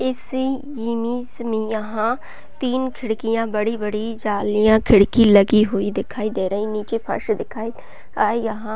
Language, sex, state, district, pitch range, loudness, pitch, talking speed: Hindi, female, Chhattisgarh, Raigarh, 215-245 Hz, -20 LUFS, 225 Hz, 135 wpm